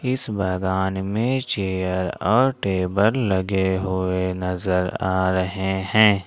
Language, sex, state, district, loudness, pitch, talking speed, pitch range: Hindi, male, Jharkhand, Ranchi, -22 LUFS, 95 Hz, 115 wpm, 95-105 Hz